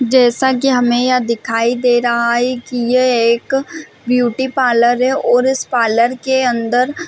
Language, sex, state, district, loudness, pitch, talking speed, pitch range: Hindi, female, Chhattisgarh, Bastar, -14 LUFS, 245 Hz, 170 wpm, 235-260 Hz